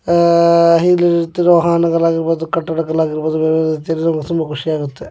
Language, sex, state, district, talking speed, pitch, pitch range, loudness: Kannada, male, Karnataka, Dakshina Kannada, 80 wpm, 165 Hz, 160-170 Hz, -14 LUFS